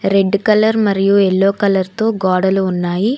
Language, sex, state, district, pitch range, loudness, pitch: Telugu, female, Telangana, Hyderabad, 190-210 Hz, -14 LUFS, 195 Hz